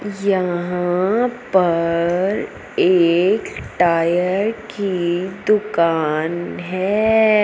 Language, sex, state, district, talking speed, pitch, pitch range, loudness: Hindi, female, Punjab, Fazilka, 55 wpm, 185 Hz, 175-205 Hz, -18 LUFS